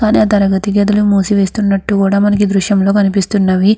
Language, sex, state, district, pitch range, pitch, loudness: Telugu, female, Andhra Pradesh, Krishna, 195-205 Hz, 200 Hz, -12 LUFS